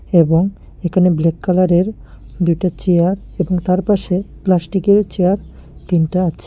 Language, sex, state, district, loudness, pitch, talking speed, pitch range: Bengali, male, Tripura, Unakoti, -16 LUFS, 180 Hz, 110 wpm, 175-190 Hz